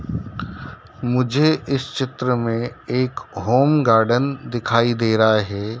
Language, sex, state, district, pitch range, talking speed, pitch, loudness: Hindi, male, Madhya Pradesh, Dhar, 110-130 Hz, 115 wpm, 120 Hz, -19 LUFS